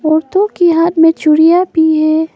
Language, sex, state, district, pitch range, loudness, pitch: Hindi, female, Arunachal Pradesh, Papum Pare, 315-345 Hz, -10 LUFS, 325 Hz